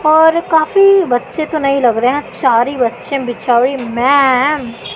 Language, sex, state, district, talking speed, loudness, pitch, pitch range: Hindi, female, Madhya Pradesh, Katni, 155 wpm, -13 LUFS, 270 Hz, 245-310 Hz